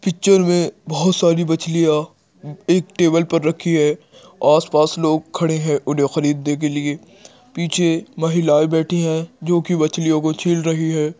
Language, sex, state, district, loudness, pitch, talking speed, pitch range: Hindi, male, Uttar Pradesh, Jyotiba Phule Nagar, -18 LUFS, 160 Hz, 165 wpm, 155-170 Hz